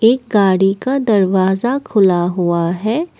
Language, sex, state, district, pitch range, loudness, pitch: Hindi, female, Assam, Kamrup Metropolitan, 185-235 Hz, -15 LUFS, 200 Hz